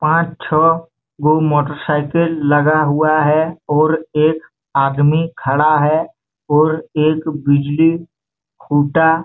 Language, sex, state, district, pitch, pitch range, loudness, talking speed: Hindi, male, Chhattisgarh, Bastar, 155 Hz, 150-160 Hz, -15 LUFS, 105 wpm